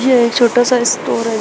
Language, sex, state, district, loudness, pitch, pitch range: Hindi, female, Uttar Pradesh, Shamli, -13 LUFS, 240 Hz, 235-250 Hz